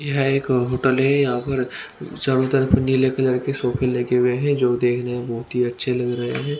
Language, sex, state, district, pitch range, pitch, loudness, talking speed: Hindi, male, Haryana, Rohtak, 125-135 Hz, 125 Hz, -20 LUFS, 220 wpm